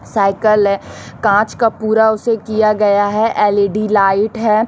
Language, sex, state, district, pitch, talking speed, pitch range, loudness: Hindi, female, Chhattisgarh, Raipur, 215 Hz, 155 wpm, 205-220 Hz, -14 LUFS